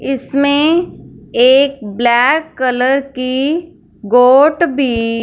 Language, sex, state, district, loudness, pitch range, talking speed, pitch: Hindi, female, Punjab, Fazilka, -13 LUFS, 245-285 Hz, 80 wpm, 265 Hz